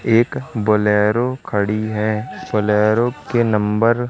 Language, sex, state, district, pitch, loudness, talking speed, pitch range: Hindi, male, Madhya Pradesh, Katni, 110 Hz, -18 LUFS, 115 wpm, 105-120 Hz